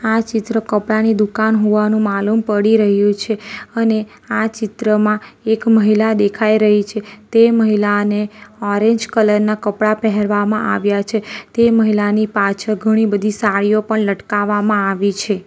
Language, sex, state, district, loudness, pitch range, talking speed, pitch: Gujarati, female, Gujarat, Valsad, -15 LUFS, 205-220 Hz, 140 wpm, 215 Hz